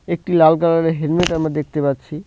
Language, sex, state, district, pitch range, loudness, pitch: Bengali, male, West Bengal, Cooch Behar, 150-170 Hz, -17 LUFS, 160 Hz